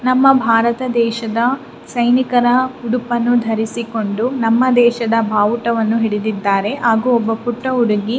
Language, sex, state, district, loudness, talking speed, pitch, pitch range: Kannada, female, Karnataka, Raichur, -16 LUFS, 115 wpm, 235 Hz, 225-245 Hz